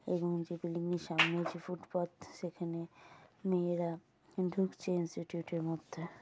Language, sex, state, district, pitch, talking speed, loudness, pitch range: Bengali, female, West Bengal, Jalpaiguri, 170 Hz, 135 wpm, -37 LUFS, 170-180 Hz